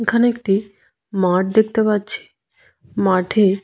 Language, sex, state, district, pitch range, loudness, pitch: Bengali, female, West Bengal, Jhargram, 195-220 Hz, -18 LUFS, 205 Hz